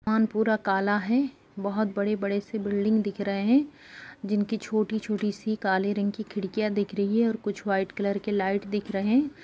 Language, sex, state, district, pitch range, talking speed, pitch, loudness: Hindi, female, Bihar, Saharsa, 200-220 Hz, 190 wpm, 210 Hz, -27 LUFS